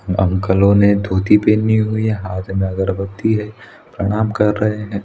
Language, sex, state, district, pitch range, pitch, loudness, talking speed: Hindi, male, Chhattisgarh, Raigarh, 95-105 Hz, 100 Hz, -16 LUFS, 165 wpm